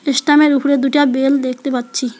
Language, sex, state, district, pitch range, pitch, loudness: Bengali, female, West Bengal, Alipurduar, 255-285 Hz, 275 Hz, -15 LUFS